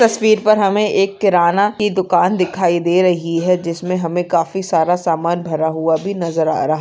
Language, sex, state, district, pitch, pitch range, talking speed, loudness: Hindi, female, Bihar, East Champaran, 180 Hz, 170-195 Hz, 195 wpm, -16 LUFS